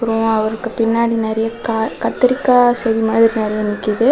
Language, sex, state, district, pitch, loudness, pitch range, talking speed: Tamil, female, Tamil Nadu, Kanyakumari, 225 Hz, -16 LUFS, 220-235 Hz, 145 wpm